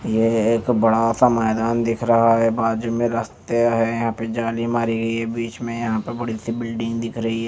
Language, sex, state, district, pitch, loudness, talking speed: Hindi, male, Punjab, Fazilka, 115 Hz, -20 LUFS, 230 wpm